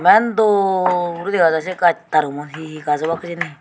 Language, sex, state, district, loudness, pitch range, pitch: Chakma, female, Tripura, Unakoti, -18 LUFS, 155-185 Hz, 170 Hz